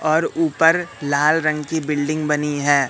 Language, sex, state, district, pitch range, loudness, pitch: Hindi, male, Madhya Pradesh, Katni, 145-160 Hz, -19 LUFS, 155 Hz